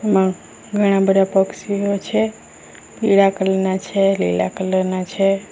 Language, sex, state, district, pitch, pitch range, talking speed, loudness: Gujarati, female, Gujarat, Valsad, 195 Hz, 185-195 Hz, 120 wpm, -18 LUFS